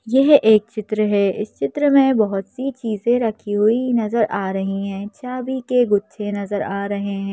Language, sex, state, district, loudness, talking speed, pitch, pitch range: Hindi, female, Madhya Pradesh, Bhopal, -19 LUFS, 190 wpm, 215 Hz, 200-245 Hz